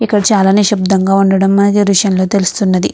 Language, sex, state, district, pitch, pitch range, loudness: Telugu, female, Andhra Pradesh, Krishna, 195 Hz, 190-205 Hz, -11 LUFS